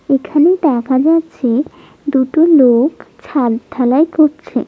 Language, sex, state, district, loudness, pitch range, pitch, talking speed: Bengali, female, West Bengal, Jalpaiguri, -13 LUFS, 260-310 Hz, 285 Hz, 100 wpm